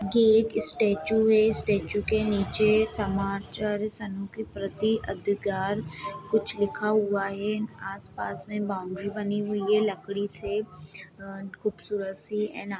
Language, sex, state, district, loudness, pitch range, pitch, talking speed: Hindi, female, Bihar, Darbhanga, -26 LUFS, 195-215 Hz, 205 Hz, 125 wpm